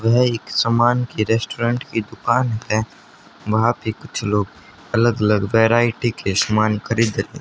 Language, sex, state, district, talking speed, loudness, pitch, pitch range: Hindi, male, Haryana, Charkhi Dadri, 155 wpm, -19 LUFS, 115 Hz, 105-120 Hz